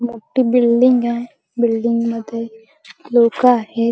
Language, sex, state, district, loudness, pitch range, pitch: Marathi, female, Maharashtra, Chandrapur, -16 LUFS, 230-245 Hz, 235 Hz